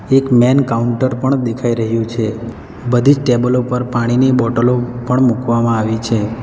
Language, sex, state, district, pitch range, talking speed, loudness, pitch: Gujarati, male, Gujarat, Valsad, 115-125 Hz, 160 wpm, -15 LUFS, 120 Hz